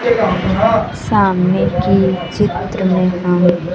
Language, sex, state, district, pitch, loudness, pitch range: Hindi, female, Bihar, Kaimur, 185 Hz, -15 LUFS, 180-190 Hz